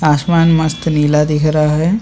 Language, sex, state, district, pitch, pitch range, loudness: Hindi, male, Chhattisgarh, Sukma, 155 Hz, 150-165 Hz, -13 LUFS